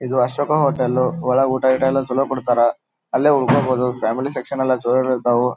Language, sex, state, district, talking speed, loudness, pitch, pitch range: Kannada, male, Karnataka, Dharwad, 160 wpm, -18 LUFS, 130 Hz, 125-135 Hz